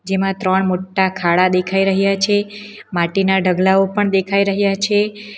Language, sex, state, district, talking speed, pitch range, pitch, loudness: Gujarati, female, Gujarat, Valsad, 145 wpm, 190-200 Hz, 195 Hz, -16 LUFS